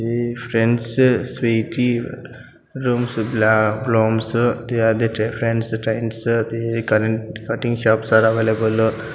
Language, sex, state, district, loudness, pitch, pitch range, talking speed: Telugu, male, Andhra Pradesh, Anantapur, -19 LUFS, 115 Hz, 110-120 Hz, 40 wpm